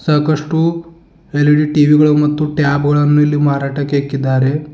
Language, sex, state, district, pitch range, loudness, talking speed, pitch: Kannada, male, Karnataka, Bidar, 145-150 Hz, -14 LUFS, 140 wpm, 150 Hz